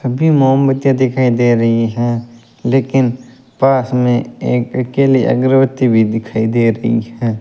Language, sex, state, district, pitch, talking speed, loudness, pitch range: Hindi, male, Rajasthan, Bikaner, 125 Hz, 140 wpm, -14 LUFS, 115-130 Hz